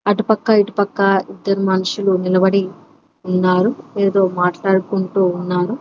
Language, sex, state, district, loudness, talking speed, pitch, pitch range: Telugu, female, Telangana, Mahabubabad, -17 LUFS, 95 wpm, 195 Hz, 185-200 Hz